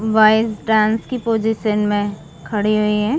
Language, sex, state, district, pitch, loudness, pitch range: Hindi, female, Chhattisgarh, Bastar, 215 Hz, -17 LUFS, 210-220 Hz